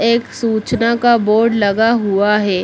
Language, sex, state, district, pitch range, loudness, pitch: Hindi, female, Bihar, Samastipur, 210-235 Hz, -14 LUFS, 225 Hz